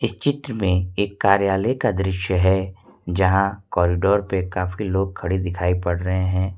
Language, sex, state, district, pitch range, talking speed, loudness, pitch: Hindi, male, Jharkhand, Ranchi, 90-100 Hz, 165 wpm, -21 LUFS, 95 Hz